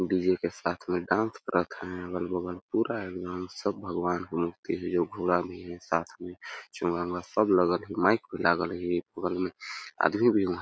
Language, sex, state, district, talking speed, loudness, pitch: Awadhi, male, Chhattisgarh, Balrampur, 210 wpm, -29 LUFS, 90 Hz